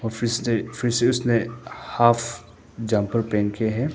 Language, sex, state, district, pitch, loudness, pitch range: Hindi, male, Arunachal Pradesh, Papum Pare, 115 Hz, -23 LUFS, 110-120 Hz